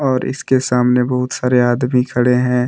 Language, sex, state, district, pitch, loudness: Hindi, male, Jharkhand, Deoghar, 125 Hz, -16 LUFS